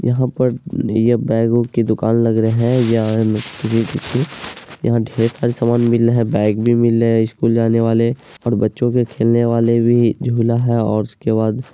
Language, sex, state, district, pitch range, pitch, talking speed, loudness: Hindi, male, Bihar, Araria, 115-120 Hz, 115 Hz, 185 wpm, -16 LUFS